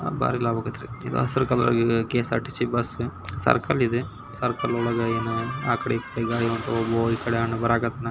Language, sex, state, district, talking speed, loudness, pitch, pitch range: Kannada, male, Karnataka, Belgaum, 120 wpm, -25 LUFS, 115 Hz, 115-120 Hz